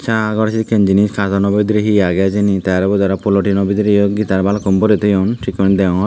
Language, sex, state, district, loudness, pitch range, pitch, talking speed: Chakma, male, Tripura, Dhalai, -14 LUFS, 95-105 Hz, 100 Hz, 215 wpm